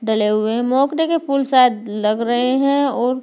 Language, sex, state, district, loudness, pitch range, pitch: Hindi, female, Delhi, New Delhi, -17 LUFS, 225-275 Hz, 250 Hz